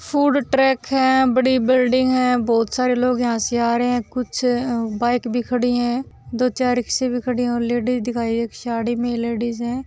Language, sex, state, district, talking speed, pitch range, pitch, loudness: Hindi, female, Rajasthan, Churu, 205 wpm, 235-255 Hz, 245 Hz, -20 LUFS